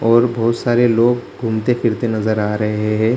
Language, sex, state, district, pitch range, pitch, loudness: Hindi, male, Bihar, Jahanabad, 110-120 Hz, 115 Hz, -17 LUFS